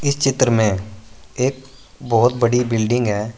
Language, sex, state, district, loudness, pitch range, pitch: Hindi, male, Uttar Pradesh, Saharanpur, -18 LUFS, 110-130 Hz, 120 Hz